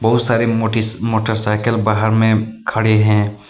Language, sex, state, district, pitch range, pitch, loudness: Hindi, male, Jharkhand, Deoghar, 110-115 Hz, 110 Hz, -16 LUFS